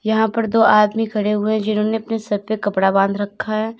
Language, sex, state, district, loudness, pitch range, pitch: Hindi, female, Uttar Pradesh, Lalitpur, -18 LUFS, 210-220 Hz, 215 Hz